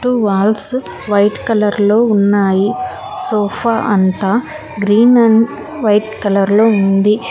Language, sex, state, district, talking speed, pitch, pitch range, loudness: Telugu, female, Telangana, Hyderabad, 105 wpm, 210 Hz, 200-235 Hz, -13 LUFS